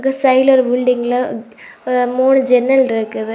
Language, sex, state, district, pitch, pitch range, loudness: Tamil, female, Tamil Nadu, Kanyakumari, 250 Hz, 245-265 Hz, -14 LUFS